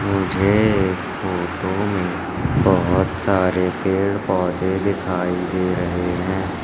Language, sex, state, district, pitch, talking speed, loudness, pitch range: Hindi, male, Madhya Pradesh, Katni, 95 Hz, 110 wpm, -20 LUFS, 90-95 Hz